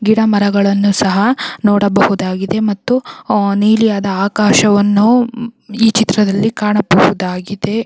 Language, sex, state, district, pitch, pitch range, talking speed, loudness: Kannada, female, Karnataka, Belgaum, 210 Hz, 200-220 Hz, 75 wpm, -13 LUFS